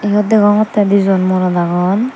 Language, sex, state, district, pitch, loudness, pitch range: Chakma, female, Tripura, Dhalai, 200 Hz, -13 LUFS, 185-210 Hz